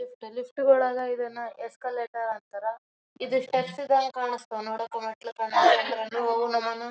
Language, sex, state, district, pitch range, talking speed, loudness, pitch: Kannada, female, Karnataka, Raichur, 230-260 Hz, 235 wpm, -27 LUFS, 240 Hz